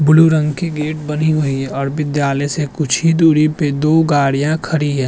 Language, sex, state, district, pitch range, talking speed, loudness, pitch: Hindi, male, Uttar Pradesh, Budaun, 145-155 Hz, 200 wpm, -15 LUFS, 150 Hz